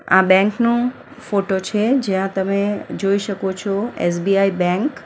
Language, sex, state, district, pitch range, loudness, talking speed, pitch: Gujarati, female, Gujarat, Valsad, 190-215 Hz, -19 LUFS, 155 wpm, 195 Hz